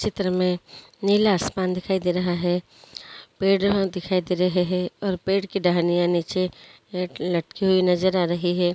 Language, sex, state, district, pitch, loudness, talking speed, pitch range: Hindi, female, Chhattisgarh, Korba, 180 Hz, -23 LUFS, 180 wpm, 180-195 Hz